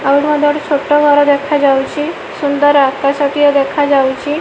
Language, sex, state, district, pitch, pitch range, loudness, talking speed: Odia, female, Odisha, Malkangiri, 290 Hz, 280-295 Hz, -12 LUFS, 110 wpm